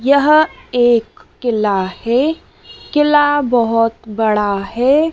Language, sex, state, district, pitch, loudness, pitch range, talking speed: Hindi, female, Madhya Pradesh, Dhar, 240 Hz, -15 LUFS, 225-290 Hz, 95 wpm